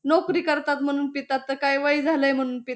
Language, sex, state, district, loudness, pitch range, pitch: Marathi, female, Maharashtra, Pune, -23 LUFS, 270-295 Hz, 280 Hz